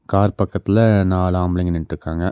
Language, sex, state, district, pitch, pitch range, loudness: Tamil, male, Tamil Nadu, Nilgiris, 90 Hz, 90-100 Hz, -18 LUFS